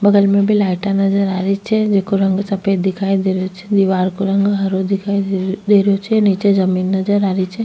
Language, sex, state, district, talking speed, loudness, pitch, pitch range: Rajasthani, female, Rajasthan, Nagaur, 225 wpm, -16 LUFS, 195 Hz, 190-200 Hz